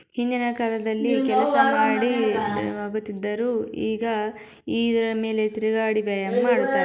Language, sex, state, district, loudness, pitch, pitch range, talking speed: Kannada, female, Karnataka, Gulbarga, -23 LUFS, 225 Hz, 215-245 Hz, 105 wpm